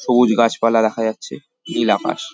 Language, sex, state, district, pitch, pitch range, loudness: Bengali, male, West Bengal, Paschim Medinipur, 115 Hz, 110-115 Hz, -17 LUFS